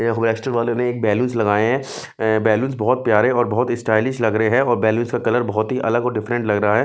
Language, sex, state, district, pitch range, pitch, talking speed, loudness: Hindi, male, Bihar, West Champaran, 110-120 Hz, 115 Hz, 245 wpm, -19 LUFS